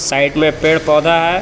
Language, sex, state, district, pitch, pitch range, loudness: Hindi, male, Jharkhand, Palamu, 155 Hz, 150-165 Hz, -13 LUFS